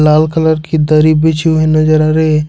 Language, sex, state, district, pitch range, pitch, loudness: Hindi, male, Jharkhand, Ranchi, 155-160 Hz, 155 Hz, -10 LUFS